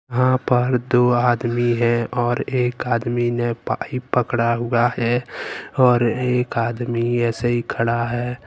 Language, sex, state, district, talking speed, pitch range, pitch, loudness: Hindi, male, Jharkhand, Ranchi, 140 wpm, 120-125 Hz, 120 Hz, -20 LUFS